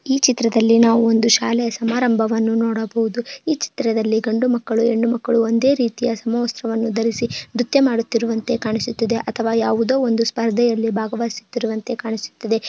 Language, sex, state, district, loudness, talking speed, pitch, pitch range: Kannada, female, Karnataka, Bijapur, -19 LUFS, 120 wpm, 230 Hz, 225-240 Hz